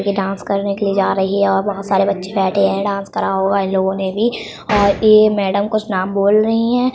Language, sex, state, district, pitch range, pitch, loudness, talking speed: Hindi, female, Uttar Pradesh, Budaun, 195-205 Hz, 200 Hz, -16 LUFS, 260 wpm